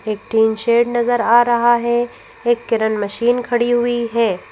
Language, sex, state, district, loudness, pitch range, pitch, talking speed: Hindi, female, Madhya Pradesh, Bhopal, -16 LUFS, 225-240 Hz, 235 Hz, 170 wpm